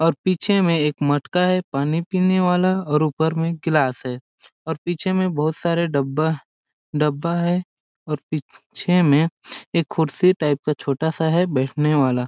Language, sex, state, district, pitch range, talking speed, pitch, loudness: Hindi, male, Chhattisgarh, Balrampur, 150-175 Hz, 165 wpm, 160 Hz, -21 LUFS